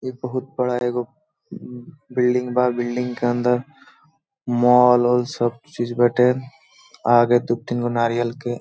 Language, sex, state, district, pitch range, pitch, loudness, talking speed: Bhojpuri, male, Bihar, Saran, 120-130 Hz, 125 Hz, -20 LUFS, 145 wpm